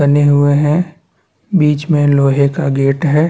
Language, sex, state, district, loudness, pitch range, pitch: Hindi, male, Chhattisgarh, Bastar, -13 LUFS, 140-155 Hz, 145 Hz